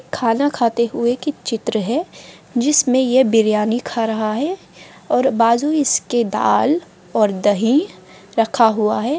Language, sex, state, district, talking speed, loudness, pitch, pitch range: Hindi, female, Bihar, Madhepura, 135 wpm, -17 LUFS, 235 Hz, 225-280 Hz